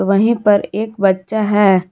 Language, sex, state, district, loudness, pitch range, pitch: Hindi, female, Jharkhand, Garhwa, -15 LUFS, 195-215 Hz, 205 Hz